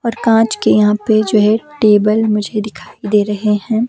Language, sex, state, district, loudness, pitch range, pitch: Hindi, female, Himachal Pradesh, Shimla, -13 LUFS, 210-225 Hz, 215 Hz